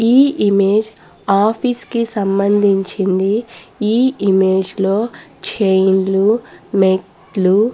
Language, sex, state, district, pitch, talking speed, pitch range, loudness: Telugu, female, Andhra Pradesh, Guntur, 200 Hz, 95 wpm, 195-225 Hz, -15 LUFS